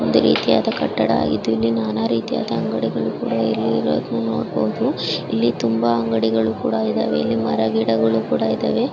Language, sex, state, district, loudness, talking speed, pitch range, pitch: Kannada, male, Karnataka, Mysore, -20 LUFS, 135 wpm, 110-115 Hz, 110 Hz